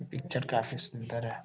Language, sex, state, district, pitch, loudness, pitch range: Hindi, male, Bihar, Gopalganj, 125 Hz, -34 LUFS, 115-135 Hz